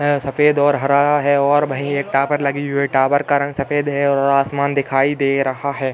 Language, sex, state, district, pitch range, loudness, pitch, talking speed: Hindi, male, Uttar Pradesh, Hamirpur, 140-145 Hz, -17 LUFS, 140 Hz, 220 wpm